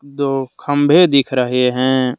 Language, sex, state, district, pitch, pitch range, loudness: Hindi, male, Jharkhand, Deoghar, 135 Hz, 125-145 Hz, -15 LUFS